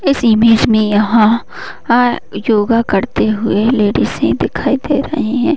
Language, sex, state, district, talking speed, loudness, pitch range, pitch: Hindi, female, Uttar Pradesh, Deoria, 130 wpm, -13 LUFS, 215-250 Hz, 230 Hz